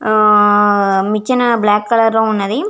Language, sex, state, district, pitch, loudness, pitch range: Telugu, female, Andhra Pradesh, Visakhapatnam, 210 Hz, -12 LUFS, 205-225 Hz